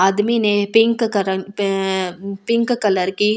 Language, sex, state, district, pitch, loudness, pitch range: Hindi, female, Delhi, New Delhi, 200 Hz, -18 LUFS, 195-225 Hz